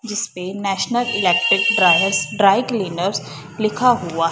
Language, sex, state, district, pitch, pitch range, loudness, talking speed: Hindi, female, Punjab, Fazilka, 195 Hz, 180-225 Hz, -17 LUFS, 110 wpm